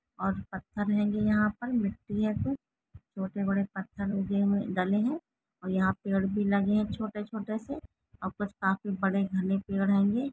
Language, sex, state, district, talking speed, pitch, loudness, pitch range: Hindi, female, Chhattisgarh, Rajnandgaon, 170 wpm, 200 Hz, -30 LUFS, 195-215 Hz